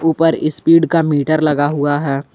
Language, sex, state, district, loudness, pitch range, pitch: Hindi, male, Jharkhand, Garhwa, -15 LUFS, 145-160 Hz, 155 Hz